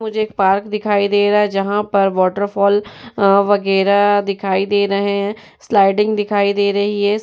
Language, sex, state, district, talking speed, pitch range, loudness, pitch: Hindi, female, Uttar Pradesh, Jyotiba Phule Nagar, 175 wpm, 200-205 Hz, -16 LUFS, 205 Hz